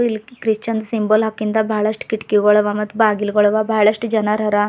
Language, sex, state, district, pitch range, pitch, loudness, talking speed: Kannada, female, Karnataka, Bidar, 210-220 Hz, 215 Hz, -17 LUFS, 180 wpm